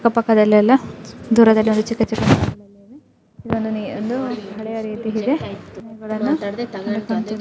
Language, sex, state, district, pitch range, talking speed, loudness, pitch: Kannada, female, Karnataka, Belgaum, 210-230 Hz, 75 wpm, -19 LUFS, 220 Hz